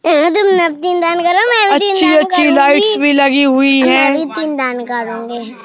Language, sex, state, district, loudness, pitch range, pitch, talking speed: Hindi, male, Madhya Pradesh, Bhopal, -11 LUFS, 270-355 Hz, 305 Hz, 85 wpm